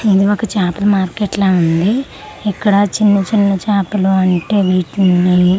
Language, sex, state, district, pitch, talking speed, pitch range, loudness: Telugu, female, Andhra Pradesh, Manyam, 195 Hz, 130 wpm, 185-205 Hz, -14 LUFS